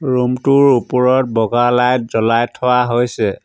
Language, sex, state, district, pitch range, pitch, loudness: Assamese, male, Assam, Sonitpur, 120-125 Hz, 125 Hz, -14 LUFS